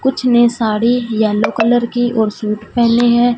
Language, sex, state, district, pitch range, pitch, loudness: Hindi, female, Punjab, Fazilka, 220-240 Hz, 235 Hz, -14 LUFS